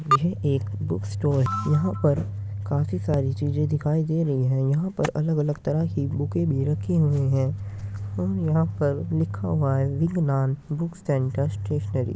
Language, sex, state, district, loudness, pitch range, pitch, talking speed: Hindi, male, Uttar Pradesh, Muzaffarnagar, -25 LUFS, 100-150 Hz, 140 Hz, 180 wpm